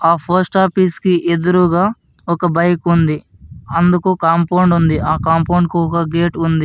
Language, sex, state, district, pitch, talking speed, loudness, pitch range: Telugu, male, Andhra Pradesh, Anantapur, 170 Hz, 155 wpm, -14 LUFS, 165-180 Hz